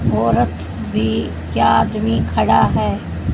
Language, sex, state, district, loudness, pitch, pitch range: Hindi, female, Haryana, Jhajjar, -17 LUFS, 100 Hz, 85-110 Hz